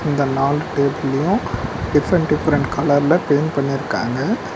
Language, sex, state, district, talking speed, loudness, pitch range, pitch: Tamil, male, Tamil Nadu, Nilgiris, 105 wpm, -18 LUFS, 140-155 Hz, 145 Hz